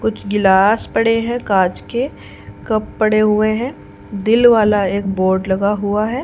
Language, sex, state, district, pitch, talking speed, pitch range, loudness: Hindi, female, Haryana, Charkhi Dadri, 210 Hz, 165 wpm, 195-225 Hz, -16 LUFS